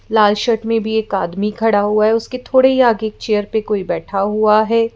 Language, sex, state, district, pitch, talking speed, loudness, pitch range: Hindi, female, Madhya Pradesh, Bhopal, 220 Hz, 240 wpm, -16 LUFS, 210-225 Hz